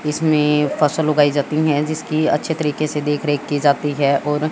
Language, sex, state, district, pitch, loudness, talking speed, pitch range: Hindi, female, Haryana, Jhajjar, 150 Hz, -18 LUFS, 200 wpm, 145-155 Hz